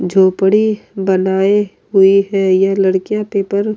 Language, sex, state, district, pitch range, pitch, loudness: Hindi, female, Bihar, Kishanganj, 190-205 Hz, 195 Hz, -14 LUFS